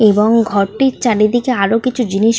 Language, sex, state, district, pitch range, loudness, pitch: Bengali, female, West Bengal, North 24 Parganas, 210-245 Hz, -14 LUFS, 225 Hz